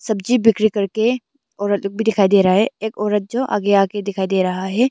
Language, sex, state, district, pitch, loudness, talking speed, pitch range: Hindi, female, Arunachal Pradesh, Longding, 205 Hz, -18 LUFS, 230 wpm, 200-220 Hz